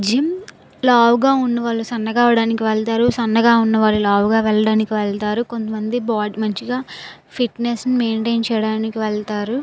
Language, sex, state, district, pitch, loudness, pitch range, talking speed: Telugu, female, Andhra Pradesh, Visakhapatnam, 225 Hz, -18 LUFS, 215-240 Hz, 130 wpm